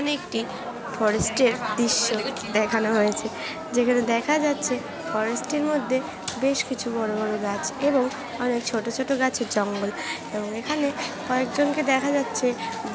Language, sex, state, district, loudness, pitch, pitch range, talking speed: Bengali, female, West Bengal, Jhargram, -25 LUFS, 245 Hz, 225-270 Hz, 130 wpm